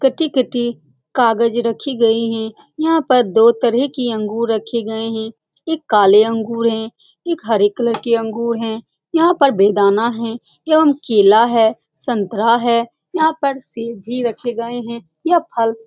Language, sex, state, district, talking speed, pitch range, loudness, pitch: Hindi, female, Bihar, Saran, 155 wpm, 225-255 Hz, -16 LUFS, 235 Hz